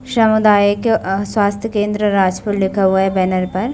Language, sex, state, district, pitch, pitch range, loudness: Hindi, female, Chhattisgarh, Balrampur, 205 Hz, 190-215 Hz, -15 LUFS